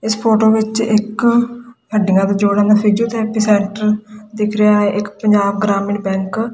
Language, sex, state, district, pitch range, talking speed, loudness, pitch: Punjabi, female, Punjab, Kapurthala, 205-220 Hz, 165 wpm, -15 LUFS, 210 Hz